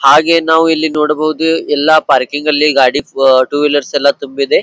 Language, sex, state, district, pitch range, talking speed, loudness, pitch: Kannada, male, Karnataka, Belgaum, 140-160 Hz, 155 wpm, -11 LUFS, 150 Hz